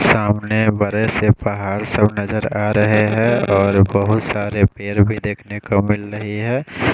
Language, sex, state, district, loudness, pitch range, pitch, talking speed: Hindi, male, Odisha, Khordha, -17 LUFS, 100-110 Hz, 105 Hz, 155 wpm